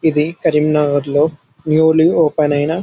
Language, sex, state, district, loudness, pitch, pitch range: Telugu, male, Telangana, Karimnagar, -14 LUFS, 155 Hz, 150-160 Hz